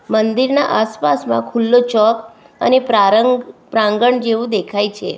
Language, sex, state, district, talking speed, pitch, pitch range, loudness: Gujarati, female, Gujarat, Valsad, 125 wpm, 220 Hz, 205-245 Hz, -15 LUFS